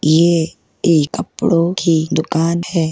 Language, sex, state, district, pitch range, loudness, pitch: Hindi, female, Uttar Pradesh, Hamirpur, 160-170 Hz, -16 LUFS, 165 Hz